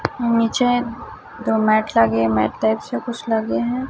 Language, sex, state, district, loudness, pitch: Hindi, female, Chhattisgarh, Raipur, -19 LUFS, 225 Hz